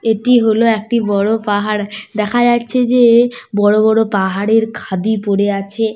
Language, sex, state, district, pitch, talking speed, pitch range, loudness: Bengali, female, West Bengal, Paschim Medinipur, 220 Hz, 140 wpm, 205-230 Hz, -14 LUFS